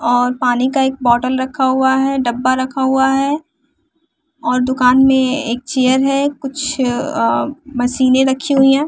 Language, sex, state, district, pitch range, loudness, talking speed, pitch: Hindi, female, Bihar, West Champaran, 255-280 Hz, -15 LUFS, 160 wpm, 265 Hz